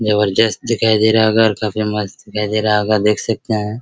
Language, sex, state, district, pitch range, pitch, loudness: Hindi, male, Bihar, Araria, 105-110 Hz, 110 Hz, -16 LUFS